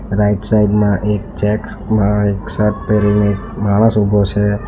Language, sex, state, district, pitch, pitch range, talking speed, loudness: Gujarati, male, Gujarat, Valsad, 105 Hz, 100-105 Hz, 155 wpm, -15 LUFS